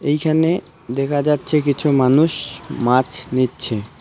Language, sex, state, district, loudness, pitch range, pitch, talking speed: Bengali, male, West Bengal, Alipurduar, -18 LUFS, 130-150 Hz, 145 Hz, 120 wpm